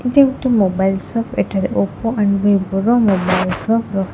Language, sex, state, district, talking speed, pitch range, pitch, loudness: Odia, female, Odisha, Khordha, 160 wpm, 190-230 Hz, 200 Hz, -16 LUFS